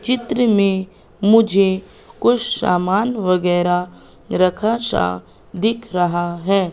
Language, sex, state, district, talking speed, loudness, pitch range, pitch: Hindi, female, Madhya Pradesh, Katni, 100 wpm, -18 LUFS, 180-225 Hz, 195 Hz